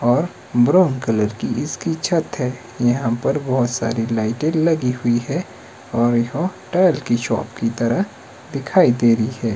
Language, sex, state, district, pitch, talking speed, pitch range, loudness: Hindi, male, Himachal Pradesh, Shimla, 120 Hz, 170 wpm, 115-155 Hz, -19 LUFS